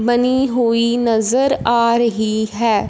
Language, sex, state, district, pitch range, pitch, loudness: Hindi, female, Punjab, Fazilka, 225-240 Hz, 235 Hz, -16 LUFS